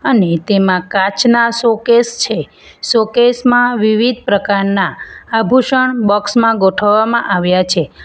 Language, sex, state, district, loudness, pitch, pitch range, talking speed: Gujarati, female, Gujarat, Valsad, -13 LUFS, 220 Hz, 195-235 Hz, 110 wpm